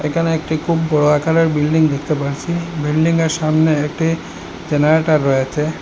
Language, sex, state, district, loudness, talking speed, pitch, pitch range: Bengali, male, Assam, Hailakandi, -16 LUFS, 135 wpm, 155 Hz, 150-165 Hz